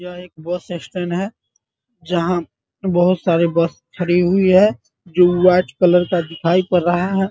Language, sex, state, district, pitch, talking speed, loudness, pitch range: Hindi, male, Bihar, Muzaffarpur, 180 Hz, 165 wpm, -17 LUFS, 170-180 Hz